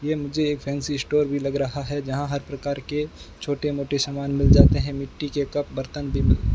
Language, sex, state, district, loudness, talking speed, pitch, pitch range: Hindi, male, Rajasthan, Bikaner, -24 LUFS, 240 wpm, 140 Hz, 140-145 Hz